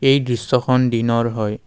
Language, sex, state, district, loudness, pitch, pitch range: Assamese, male, Assam, Kamrup Metropolitan, -18 LUFS, 120 Hz, 115-125 Hz